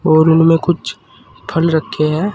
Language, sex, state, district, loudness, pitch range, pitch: Hindi, male, Uttar Pradesh, Saharanpur, -14 LUFS, 155-170 Hz, 160 Hz